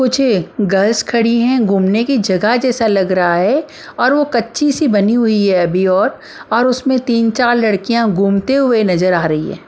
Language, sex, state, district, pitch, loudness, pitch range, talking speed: Hindi, female, Maharashtra, Mumbai Suburban, 230 Hz, -14 LUFS, 195-250 Hz, 190 wpm